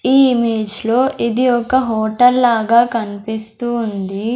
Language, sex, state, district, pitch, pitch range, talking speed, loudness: Telugu, female, Andhra Pradesh, Sri Satya Sai, 235 Hz, 220-245 Hz, 125 wpm, -15 LUFS